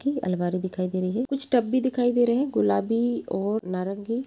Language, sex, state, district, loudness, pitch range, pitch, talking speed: Hindi, female, Uttar Pradesh, Jalaun, -25 LUFS, 185-245 Hz, 225 Hz, 225 wpm